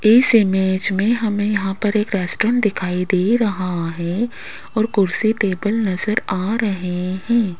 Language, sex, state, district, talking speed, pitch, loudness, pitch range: Hindi, female, Rajasthan, Jaipur, 150 wpm, 205 Hz, -19 LUFS, 185-220 Hz